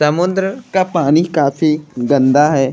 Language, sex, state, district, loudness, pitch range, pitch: Bhojpuri, male, Uttar Pradesh, Deoria, -14 LUFS, 140-180 Hz, 150 Hz